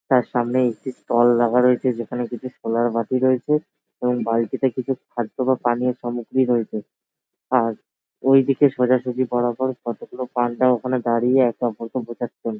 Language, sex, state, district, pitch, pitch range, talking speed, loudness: Bengali, male, West Bengal, Jalpaiguri, 125 Hz, 120-130 Hz, 150 wpm, -21 LUFS